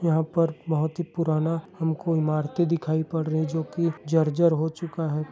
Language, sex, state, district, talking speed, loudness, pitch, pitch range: Hindi, male, Chhattisgarh, Bilaspur, 180 wpm, -25 LUFS, 160 Hz, 155-170 Hz